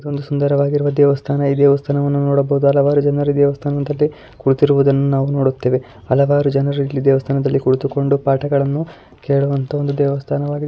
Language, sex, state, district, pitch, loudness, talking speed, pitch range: Kannada, female, Karnataka, Dakshina Kannada, 140 Hz, -16 LUFS, 125 wpm, 140-145 Hz